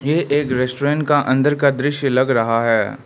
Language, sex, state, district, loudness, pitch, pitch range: Hindi, male, Arunachal Pradesh, Lower Dibang Valley, -17 LUFS, 140 Hz, 125-145 Hz